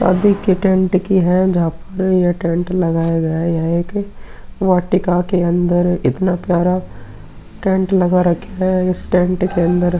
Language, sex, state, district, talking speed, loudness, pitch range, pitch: Hindi, male, Uttar Pradesh, Muzaffarnagar, 160 wpm, -16 LUFS, 170-185 Hz, 180 Hz